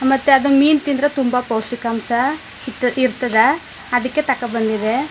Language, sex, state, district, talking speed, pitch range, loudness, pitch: Kannada, female, Karnataka, Mysore, 115 wpm, 235-275 Hz, -17 LUFS, 255 Hz